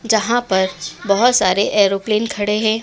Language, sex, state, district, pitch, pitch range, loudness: Hindi, female, Madhya Pradesh, Dhar, 205 Hz, 195-225 Hz, -16 LUFS